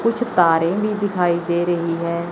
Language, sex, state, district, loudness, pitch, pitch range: Hindi, male, Chandigarh, Chandigarh, -19 LUFS, 175 Hz, 170-205 Hz